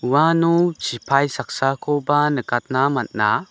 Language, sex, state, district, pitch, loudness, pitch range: Garo, male, Meghalaya, West Garo Hills, 140 Hz, -19 LUFS, 125-150 Hz